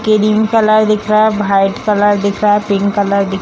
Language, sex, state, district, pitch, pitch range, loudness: Hindi, female, Bihar, Jamui, 205 Hz, 200-215 Hz, -12 LUFS